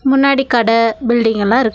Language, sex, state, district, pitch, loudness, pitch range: Tamil, female, Tamil Nadu, Nilgiris, 235 Hz, -13 LUFS, 230-265 Hz